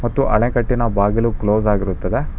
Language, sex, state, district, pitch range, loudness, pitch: Kannada, male, Karnataka, Bangalore, 105-120 Hz, -18 LUFS, 110 Hz